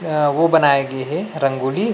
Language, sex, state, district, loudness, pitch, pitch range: Chhattisgarhi, male, Chhattisgarh, Rajnandgaon, -17 LUFS, 145 Hz, 135-165 Hz